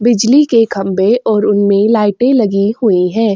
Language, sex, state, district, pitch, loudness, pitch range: Hindi, female, Chhattisgarh, Sukma, 215 Hz, -11 LUFS, 200-235 Hz